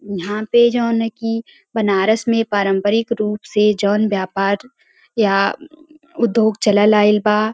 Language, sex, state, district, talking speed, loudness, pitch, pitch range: Bhojpuri, female, Uttar Pradesh, Varanasi, 135 wpm, -17 LUFS, 215 Hz, 205-230 Hz